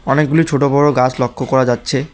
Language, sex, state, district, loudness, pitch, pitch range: Bengali, male, West Bengal, Alipurduar, -14 LUFS, 135 Hz, 130-145 Hz